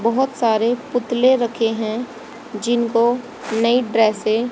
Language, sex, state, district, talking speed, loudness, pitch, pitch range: Hindi, female, Haryana, Rohtak, 120 wpm, -19 LUFS, 235 Hz, 225-245 Hz